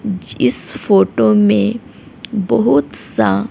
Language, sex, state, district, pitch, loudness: Hindi, female, Haryana, Rohtak, 125 Hz, -15 LUFS